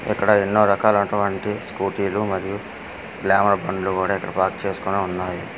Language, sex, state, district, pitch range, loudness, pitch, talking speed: Telugu, male, Andhra Pradesh, Manyam, 95-100 Hz, -21 LUFS, 100 Hz, 120 wpm